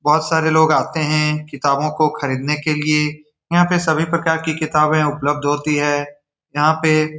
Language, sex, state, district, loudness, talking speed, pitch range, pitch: Hindi, male, Bihar, Saran, -17 LUFS, 185 wpm, 145-160 Hz, 150 Hz